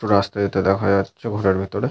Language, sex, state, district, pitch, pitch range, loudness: Bengali, male, West Bengal, Malda, 100 Hz, 95-105 Hz, -20 LUFS